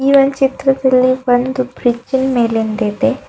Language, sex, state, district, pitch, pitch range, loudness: Kannada, female, Karnataka, Bidar, 260 Hz, 240-270 Hz, -14 LUFS